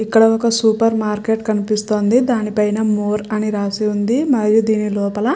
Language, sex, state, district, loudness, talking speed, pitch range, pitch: Telugu, female, Andhra Pradesh, Chittoor, -17 LUFS, 170 wpm, 210-225 Hz, 215 Hz